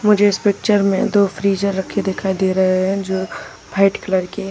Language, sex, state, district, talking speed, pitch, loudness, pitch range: Hindi, male, Uttar Pradesh, Lalitpur, 200 wpm, 195 Hz, -17 LUFS, 190-200 Hz